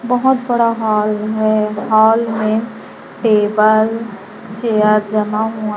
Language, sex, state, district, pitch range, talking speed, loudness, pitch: Hindi, female, Chhattisgarh, Raipur, 215-225 Hz, 105 wpm, -15 LUFS, 215 Hz